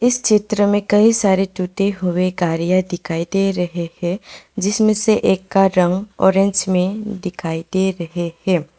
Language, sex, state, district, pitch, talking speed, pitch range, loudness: Hindi, female, West Bengal, Alipurduar, 190 Hz, 155 wpm, 175-205 Hz, -18 LUFS